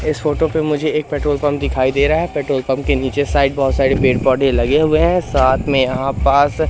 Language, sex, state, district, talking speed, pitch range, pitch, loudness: Hindi, male, Madhya Pradesh, Katni, 240 wpm, 135-150 Hz, 140 Hz, -16 LUFS